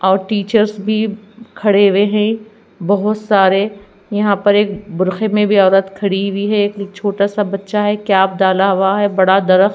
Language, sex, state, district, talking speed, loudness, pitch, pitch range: Hindi, female, Bihar, Katihar, 180 wpm, -14 LUFS, 205 Hz, 195-210 Hz